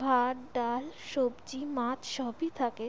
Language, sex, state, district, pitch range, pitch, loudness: Bengali, female, West Bengal, Jalpaiguri, 245-265 Hz, 255 Hz, -33 LUFS